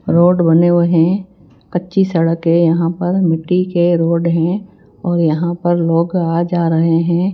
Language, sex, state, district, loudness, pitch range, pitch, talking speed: Hindi, female, Himachal Pradesh, Shimla, -14 LUFS, 165-175 Hz, 170 Hz, 170 wpm